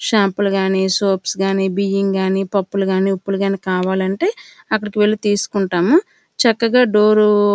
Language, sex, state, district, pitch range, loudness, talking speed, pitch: Telugu, female, Andhra Pradesh, Srikakulam, 190-210 Hz, -17 LUFS, 125 wpm, 195 Hz